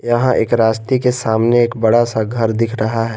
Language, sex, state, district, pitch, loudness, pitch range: Hindi, male, Jharkhand, Garhwa, 115 Hz, -15 LUFS, 110-120 Hz